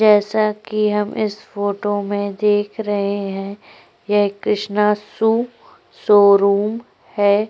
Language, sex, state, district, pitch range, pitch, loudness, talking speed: Hindi, female, Chhattisgarh, Korba, 200-215 Hz, 205 Hz, -18 LUFS, 110 wpm